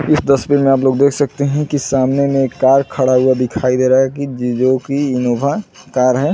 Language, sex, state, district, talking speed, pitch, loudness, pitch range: Hindi, male, Chhattisgarh, Bilaspur, 235 wpm, 135 Hz, -15 LUFS, 130-140 Hz